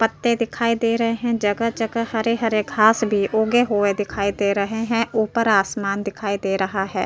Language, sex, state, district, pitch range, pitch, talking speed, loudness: Hindi, female, Uttar Pradesh, Jyotiba Phule Nagar, 200-230 Hz, 220 Hz, 195 wpm, -20 LUFS